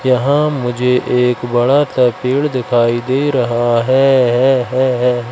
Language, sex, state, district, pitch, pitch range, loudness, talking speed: Hindi, male, Madhya Pradesh, Katni, 125 Hz, 120-135 Hz, -14 LUFS, 160 wpm